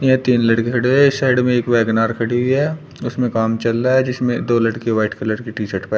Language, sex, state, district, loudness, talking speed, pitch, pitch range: Hindi, male, Uttar Pradesh, Shamli, -17 LUFS, 290 wpm, 120 Hz, 115-130 Hz